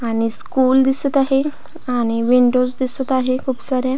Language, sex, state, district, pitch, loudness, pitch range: Marathi, female, Maharashtra, Pune, 260 Hz, -16 LUFS, 250-270 Hz